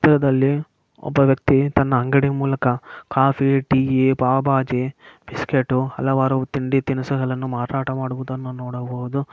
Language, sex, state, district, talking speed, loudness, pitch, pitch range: Kannada, male, Karnataka, Mysore, 85 wpm, -20 LUFS, 135 Hz, 130-135 Hz